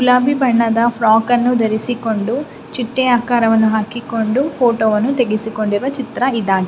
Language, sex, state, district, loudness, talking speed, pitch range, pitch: Kannada, female, Karnataka, Raichur, -16 LUFS, 110 wpm, 220-250 Hz, 235 Hz